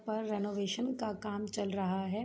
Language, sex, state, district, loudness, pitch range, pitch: Hindi, female, Jharkhand, Sahebganj, -36 LUFS, 200-220 Hz, 210 Hz